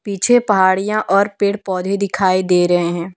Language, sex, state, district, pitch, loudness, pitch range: Hindi, female, Jharkhand, Deoghar, 195 Hz, -16 LUFS, 180-200 Hz